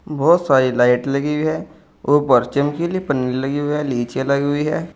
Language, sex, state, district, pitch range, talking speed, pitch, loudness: Hindi, male, Uttar Pradesh, Saharanpur, 130-150 Hz, 180 wpm, 140 Hz, -18 LUFS